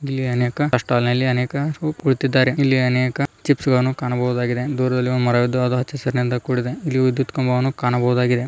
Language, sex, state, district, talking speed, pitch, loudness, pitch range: Kannada, male, Karnataka, Raichur, 170 wpm, 125 Hz, -20 LUFS, 125-135 Hz